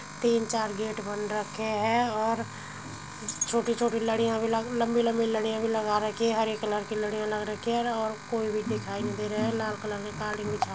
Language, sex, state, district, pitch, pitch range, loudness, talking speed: Hindi, female, Uttar Pradesh, Muzaffarnagar, 220 Hz, 210-230 Hz, -29 LUFS, 205 wpm